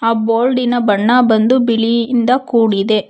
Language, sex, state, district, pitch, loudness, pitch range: Kannada, female, Karnataka, Bangalore, 230 Hz, -13 LUFS, 220-245 Hz